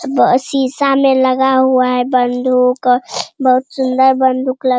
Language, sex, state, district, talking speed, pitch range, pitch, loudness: Hindi, female, Bihar, Jamui, 150 wpm, 255-265 Hz, 260 Hz, -13 LUFS